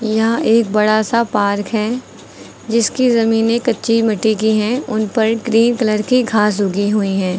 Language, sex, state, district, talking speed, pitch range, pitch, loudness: Hindi, female, Uttar Pradesh, Lucknow, 170 wpm, 215-230 Hz, 220 Hz, -15 LUFS